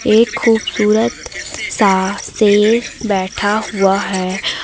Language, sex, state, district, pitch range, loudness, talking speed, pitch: Hindi, female, Madhya Pradesh, Umaria, 195-220 Hz, -15 LUFS, 75 wpm, 210 Hz